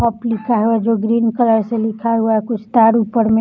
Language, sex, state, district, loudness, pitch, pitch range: Hindi, female, Maharashtra, Nagpur, -16 LUFS, 225 Hz, 220-230 Hz